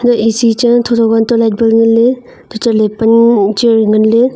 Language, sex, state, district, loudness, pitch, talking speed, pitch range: Wancho, female, Arunachal Pradesh, Longding, -10 LUFS, 230 Hz, 195 wpm, 225-235 Hz